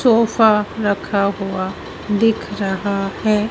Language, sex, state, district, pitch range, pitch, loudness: Hindi, female, Madhya Pradesh, Dhar, 195-220 Hz, 205 Hz, -18 LUFS